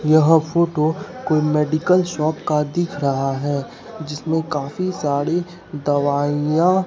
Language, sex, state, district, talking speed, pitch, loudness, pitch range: Hindi, male, Bihar, Katihar, 115 wpm, 155 Hz, -20 LUFS, 145-175 Hz